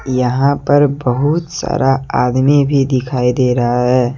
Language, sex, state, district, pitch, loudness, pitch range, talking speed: Hindi, male, Jharkhand, Deoghar, 130 Hz, -14 LUFS, 125-140 Hz, 145 wpm